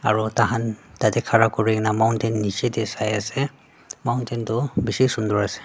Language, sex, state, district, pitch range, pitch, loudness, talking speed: Nagamese, female, Nagaland, Dimapur, 110-120 Hz, 115 Hz, -22 LUFS, 160 wpm